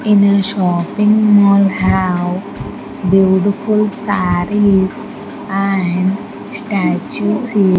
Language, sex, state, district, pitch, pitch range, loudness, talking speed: English, female, Andhra Pradesh, Sri Satya Sai, 200 Hz, 185-210 Hz, -14 LUFS, 85 wpm